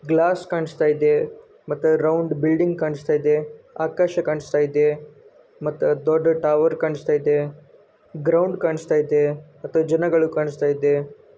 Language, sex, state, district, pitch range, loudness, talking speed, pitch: Kannada, male, Karnataka, Gulbarga, 150-170 Hz, -21 LUFS, 85 wpm, 160 Hz